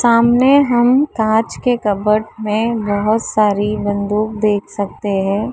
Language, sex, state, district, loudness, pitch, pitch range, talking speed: Hindi, female, Uttar Pradesh, Lalitpur, -15 LUFS, 215 Hz, 205-235 Hz, 130 wpm